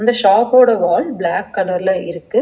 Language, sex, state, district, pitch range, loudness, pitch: Tamil, female, Tamil Nadu, Chennai, 175-240 Hz, -15 LUFS, 190 Hz